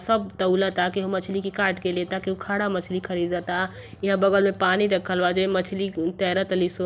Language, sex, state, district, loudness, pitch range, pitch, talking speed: Bhojpuri, female, Uttar Pradesh, Varanasi, -24 LUFS, 180-195 Hz, 190 Hz, 210 wpm